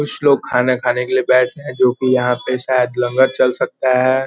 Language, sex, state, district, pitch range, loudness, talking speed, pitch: Hindi, male, Bihar, Gopalganj, 125-130 Hz, -16 LUFS, 240 wpm, 130 Hz